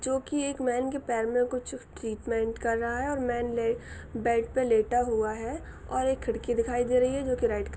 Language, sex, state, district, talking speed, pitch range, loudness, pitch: Hindi, female, Jharkhand, Sahebganj, 240 wpm, 230-255 Hz, -29 LUFS, 240 Hz